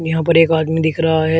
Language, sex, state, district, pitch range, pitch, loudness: Hindi, male, Uttar Pradesh, Shamli, 160-165 Hz, 160 Hz, -15 LUFS